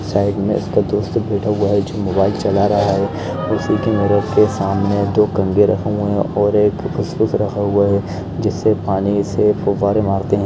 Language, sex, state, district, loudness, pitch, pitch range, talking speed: Hindi, male, Chhattisgarh, Rajnandgaon, -17 LUFS, 100 Hz, 100-105 Hz, 195 wpm